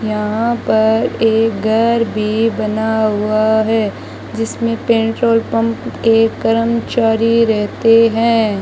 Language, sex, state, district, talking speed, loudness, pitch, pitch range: Hindi, female, Rajasthan, Bikaner, 105 wpm, -14 LUFS, 225 Hz, 220-230 Hz